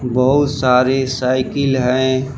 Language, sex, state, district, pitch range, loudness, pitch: Hindi, male, Jharkhand, Palamu, 125-135 Hz, -16 LUFS, 130 Hz